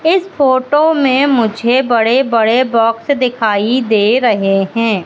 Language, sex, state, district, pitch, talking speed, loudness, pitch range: Hindi, female, Madhya Pradesh, Katni, 240 Hz, 130 wpm, -12 LUFS, 225-265 Hz